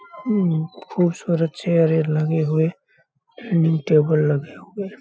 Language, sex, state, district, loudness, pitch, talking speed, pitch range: Hindi, male, Bihar, Saharsa, -20 LUFS, 165 Hz, 120 wpm, 155-180 Hz